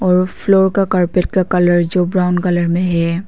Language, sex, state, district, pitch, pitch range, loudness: Hindi, female, Arunachal Pradesh, Papum Pare, 180 Hz, 175-185 Hz, -15 LUFS